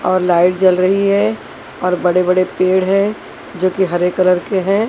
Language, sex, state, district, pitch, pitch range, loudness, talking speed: Hindi, female, Haryana, Rohtak, 185 Hz, 180-190 Hz, -15 LUFS, 195 wpm